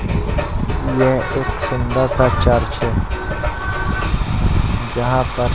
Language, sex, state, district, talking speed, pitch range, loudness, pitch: Hindi, male, Madhya Pradesh, Katni, 85 wpm, 85-120 Hz, -18 LUFS, 100 Hz